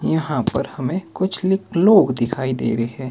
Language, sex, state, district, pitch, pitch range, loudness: Hindi, male, Himachal Pradesh, Shimla, 140 Hz, 125-185 Hz, -19 LUFS